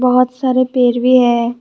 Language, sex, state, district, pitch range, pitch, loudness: Hindi, female, Tripura, West Tripura, 245-255 Hz, 250 Hz, -13 LUFS